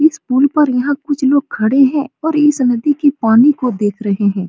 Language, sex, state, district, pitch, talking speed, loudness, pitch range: Hindi, female, Bihar, Supaul, 275 Hz, 225 wpm, -14 LUFS, 235-290 Hz